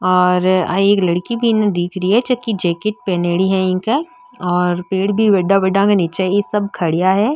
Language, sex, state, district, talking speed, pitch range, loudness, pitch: Marwari, female, Rajasthan, Nagaur, 195 wpm, 180-210 Hz, -16 LUFS, 190 Hz